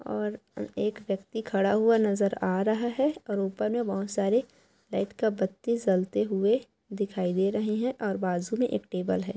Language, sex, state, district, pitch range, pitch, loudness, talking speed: Hindi, female, Chhattisgarh, Korba, 195-225 Hz, 205 Hz, -28 LUFS, 185 wpm